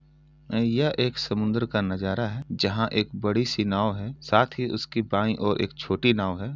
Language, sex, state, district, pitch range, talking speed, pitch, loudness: Hindi, male, Uttar Pradesh, Etah, 105-125 Hz, 185 wpm, 110 Hz, -26 LUFS